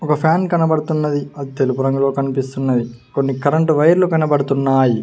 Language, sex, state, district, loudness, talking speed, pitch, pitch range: Telugu, male, Telangana, Mahabubabad, -17 LUFS, 130 wpm, 140 Hz, 135-155 Hz